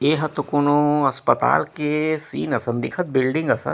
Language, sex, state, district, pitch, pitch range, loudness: Chhattisgarhi, male, Chhattisgarh, Rajnandgaon, 145 Hz, 135-150 Hz, -21 LUFS